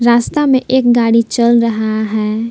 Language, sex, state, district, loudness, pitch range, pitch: Hindi, female, Jharkhand, Palamu, -13 LUFS, 220-240 Hz, 235 Hz